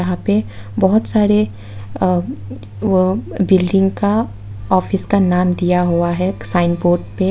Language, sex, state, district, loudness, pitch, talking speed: Hindi, female, Tripura, West Tripura, -16 LUFS, 180 Hz, 150 wpm